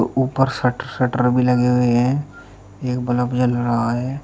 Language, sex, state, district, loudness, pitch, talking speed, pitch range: Hindi, male, Uttar Pradesh, Shamli, -19 LUFS, 125 Hz, 170 wpm, 120-130 Hz